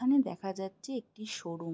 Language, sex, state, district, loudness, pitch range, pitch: Bengali, female, West Bengal, Jalpaiguri, -35 LUFS, 185-250 Hz, 195 Hz